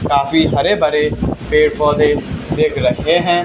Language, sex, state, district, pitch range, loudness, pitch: Hindi, male, Haryana, Charkhi Dadri, 145-160 Hz, -15 LUFS, 150 Hz